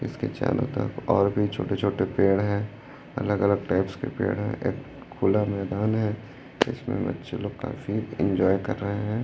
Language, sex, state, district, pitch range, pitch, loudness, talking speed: Hindi, male, Chhattisgarh, Raipur, 100-125 Hz, 105 Hz, -26 LUFS, 175 wpm